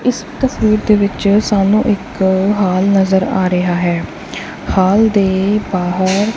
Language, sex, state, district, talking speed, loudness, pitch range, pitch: Punjabi, female, Punjab, Kapurthala, 130 wpm, -14 LUFS, 190-210 Hz, 200 Hz